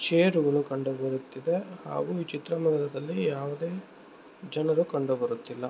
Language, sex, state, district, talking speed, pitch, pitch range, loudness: Kannada, male, Karnataka, Mysore, 85 wpm, 155 Hz, 135-170 Hz, -29 LUFS